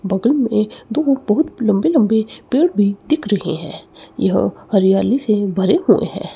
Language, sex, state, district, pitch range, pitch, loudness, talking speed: Hindi, male, Chandigarh, Chandigarh, 195-255 Hz, 215 Hz, -17 LUFS, 160 wpm